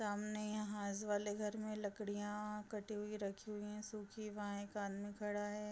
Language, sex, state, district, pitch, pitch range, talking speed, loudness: Hindi, female, Bihar, Sitamarhi, 210 Hz, 205-210 Hz, 200 wpm, -45 LUFS